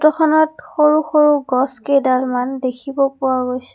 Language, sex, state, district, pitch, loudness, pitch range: Assamese, female, Assam, Kamrup Metropolitan, 275 Hz, -16 LUFS, 255-300 Hz